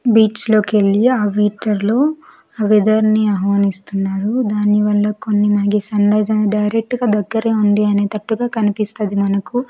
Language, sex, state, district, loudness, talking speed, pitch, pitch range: Telugu, female, Andhra Pradesh, Sri Satya Sai, -16 LUFS, 140 wpm, 210 Hz, 205-220 Hz